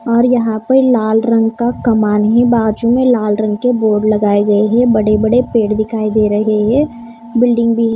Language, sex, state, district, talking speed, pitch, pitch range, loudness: Hindi, female, Maharashtra, Mumbai Suburban, 190 wpm, 225 Hz, 215-240 Hz, -13 LUFS